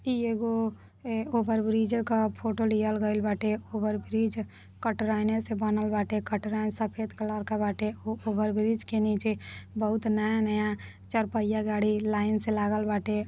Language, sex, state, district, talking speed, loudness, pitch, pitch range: Bhojpuri, female, Uttar Pradesh, Deoria, 145 wpm, -29 LUFS, 215 Hz, 210-220 Hz